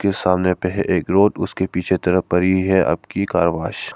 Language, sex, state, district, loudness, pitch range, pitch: Hindi, male, Arunachal Pradesh, Papum Pare, -18 LUFS, 90-95 Hz, 95 Hz